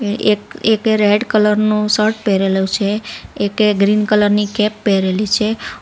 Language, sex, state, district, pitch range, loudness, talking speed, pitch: Gujarati, female, Gujarat, Valsad, 205-215 Hz, -15 LUFS, 175 wpm, 210 Hz